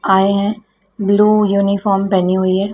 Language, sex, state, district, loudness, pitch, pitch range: Hindi, female, Madhya Pradesh, Dhar, -15 LUFS, 200 Hz, 195-210 Hz